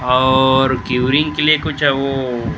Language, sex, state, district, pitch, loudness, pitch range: Hindi, male, Maharashtra, Gondia, 130 Hz, -15 LUFS, 125-145 Hz